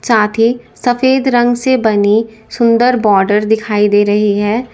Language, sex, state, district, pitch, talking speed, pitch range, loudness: Hindi, female, Uttar Pradesh, Lalitpur, 225 Hz, 150 wpm, 210-245 Hz, -12 LUFS